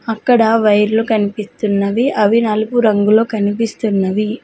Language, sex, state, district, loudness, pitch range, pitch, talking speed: Telugu, female, Telangana, Mahabubabad, -14 LUFS, 210-225 Hz, 215 Hz, 95 wpm